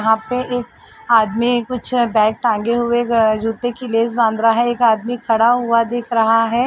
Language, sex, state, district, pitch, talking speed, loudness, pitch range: Hindi, female, Uttar Pradesh, Varanasi, 235 Hz, 200 wpm, -16 LUFS, 225-245 Hz